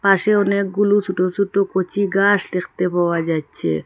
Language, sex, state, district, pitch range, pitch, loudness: Bengali, female, Assam, Hailakandi, 180-200 Hz, 195 Hz, -19 LUFS